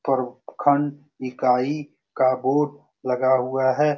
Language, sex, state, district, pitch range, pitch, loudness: Hindi, male, Bihar, Saran, 130-145 Hz, 130 Hz, -22 LUFS